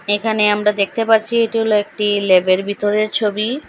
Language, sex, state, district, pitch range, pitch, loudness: Bengali, female, Assam, Hailakandi, 205-225 Hz, 210 Hz, -16 LUFS